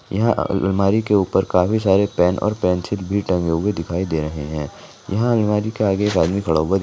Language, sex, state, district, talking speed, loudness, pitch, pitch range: Hindi, female, Rajasthan, Nagaur, 195 wpm, -19 LUFS, 95 Hz, 85-105 Hz